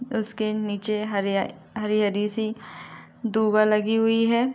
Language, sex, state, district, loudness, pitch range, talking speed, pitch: Hindi, female, Uttar Pradesh, Gorakhpur, -24 LUFS, 210-225 Hz, 120 wpm, 215 Hz